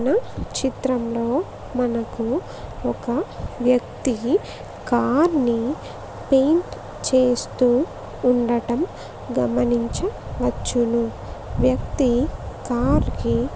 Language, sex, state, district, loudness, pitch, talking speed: Telugu, female, Andhra Pradesh, Visakhapatnam, -22 LUFS, 240 Hz, 60 wpm